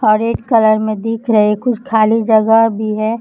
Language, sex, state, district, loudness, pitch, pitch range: Hindi, female, Maharashtra, Chandrapur, -13 LUFS, 220 Hz, 215-225 Hz